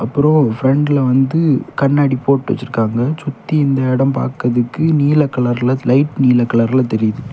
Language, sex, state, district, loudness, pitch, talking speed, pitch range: Tamil, male, Tamil Nadu, Kanyakumari, -15 LUFS, 135 Hz, 130 wpm, 120-145 Hz